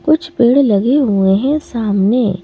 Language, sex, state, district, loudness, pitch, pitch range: Hindi, female, Madhya Pradesh, Bhopal, -13 LUFS, 240 Hz, 200-280 Hz